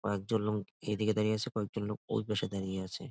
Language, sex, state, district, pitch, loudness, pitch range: Bengali, male, West Bengal, Jalpaiguri, 105 Hz, -35 LUFS, 100-110 Hz